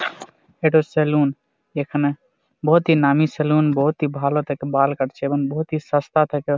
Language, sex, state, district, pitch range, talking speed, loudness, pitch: Bengali, male, Jharkhand, Jamtara, 140-155 Hz, 145 wpm, -20 LUFS, 145 Hz